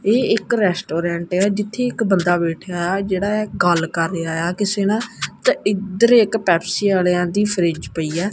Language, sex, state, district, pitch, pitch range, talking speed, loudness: Punjabi, female, Punjab, Kapurthala, 190 Hz, 175-205 Hz, 165 wpm, -19 LUFS